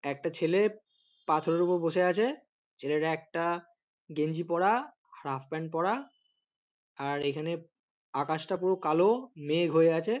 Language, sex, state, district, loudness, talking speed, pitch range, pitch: Bengali, male, West Bengal, North 24 Parganas, -30 LUFS, 125 wpm, 155-180 Hz, 165 Hz